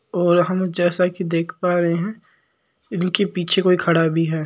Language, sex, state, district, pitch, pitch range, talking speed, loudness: Marwari, male, Rajasthan, Nagaur, 180 Hz, 170-185 Hz, 190 wpm, -19 LUFS